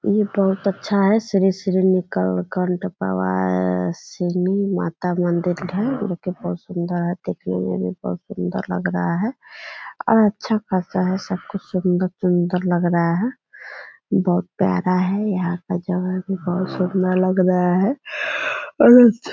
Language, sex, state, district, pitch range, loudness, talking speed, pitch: Hindi, female, Bihar, Purnia, 175-195 Hz, -20 LUFS, 160 wpm, 185 Hz